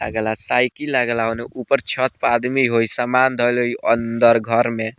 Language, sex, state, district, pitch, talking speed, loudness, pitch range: Bhojpuri, male, Bihar, Muzaffarpur, 120 Hz, 180 wpm, -18 LUFS, 115-125 Hz